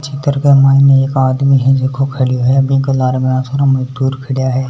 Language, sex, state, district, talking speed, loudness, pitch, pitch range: Hindi, male, Rajasthan, Nagaur, 215 wpm, -12 LUFS, 135 Hz, 130-135 Hz